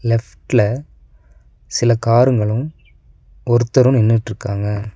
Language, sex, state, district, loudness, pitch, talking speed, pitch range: Tamil, male, Tamil Nadu, Nilgiris, -17 LUFS, 115 Hz, 60 wpm, 100-120 Hz